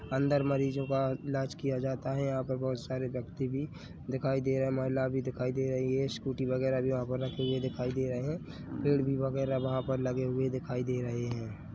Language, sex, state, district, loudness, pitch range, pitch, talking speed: Hindi, male, Chhattisgarh, Rajnandgaon, -33 LUFS, 130-135 Hz, 130 Hz, 230 wpm